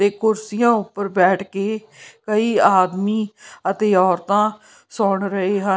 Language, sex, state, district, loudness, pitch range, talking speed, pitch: Punjabi, female, Punjab, Pathankot, -19 LUFS, 195-215 Hz, 125 wpm, 200 Hz